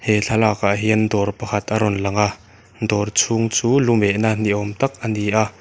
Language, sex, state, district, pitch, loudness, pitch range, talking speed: Mizo, male, Mizoram, Aizawl, 110 Hz, -19 LUFS, 105-110 Hz, 190 wpm